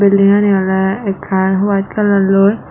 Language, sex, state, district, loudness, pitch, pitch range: Chakma, female, Tripura, Dhalai, -13 LUFS, 195 Hz, 195-200 Hz